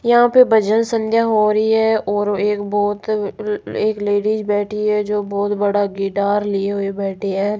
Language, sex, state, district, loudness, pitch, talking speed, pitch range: Hindi, female, Rajasthan, Jaipur, -18 LUFS, 205 Hz, 180 wpm, 205-215 Hz